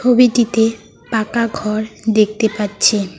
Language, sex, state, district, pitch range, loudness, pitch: Bengali, female, West Bengal, Alipurduar, 210-230 Hz, -16 LUFS, 220 Hz